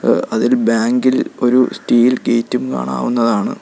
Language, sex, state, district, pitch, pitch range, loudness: Malayalam, male, Kerala, Kollam, 120 Hz, 115-125 Hz, -15 LUFS